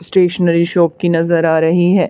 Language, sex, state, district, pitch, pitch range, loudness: Hindi, female, Haryana, Charkhi Dadri, 170 Hz, 165-180 Hz, -13 LUFS